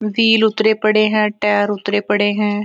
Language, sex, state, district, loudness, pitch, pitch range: Hindi, female, Bihar, East Champaran, -15 LUFS, 210 Hz, 205-215 Hz